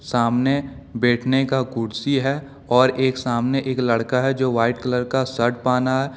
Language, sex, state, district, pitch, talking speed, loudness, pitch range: Hindi, male, Jharkhand, Deoghar, 130 Hz, 175 wpm, -20 LUFS, 120-135 Hz